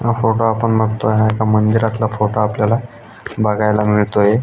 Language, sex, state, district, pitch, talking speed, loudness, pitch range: Marathi, male, Maharashtra, Aurangabad, 110 Hz, 150 wpm, -16 LUFS, 105-115 Hz